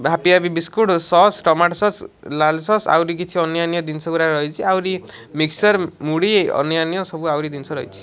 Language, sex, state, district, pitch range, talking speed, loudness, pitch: Odia, male, Odisha, Malkangiri, 155-180 Hz, 210 wpm, -18 LUFS, 165 Hz